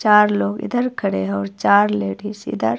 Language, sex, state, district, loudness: Hindi, female, Himachal Pradesh, Shimla, -19 LUFS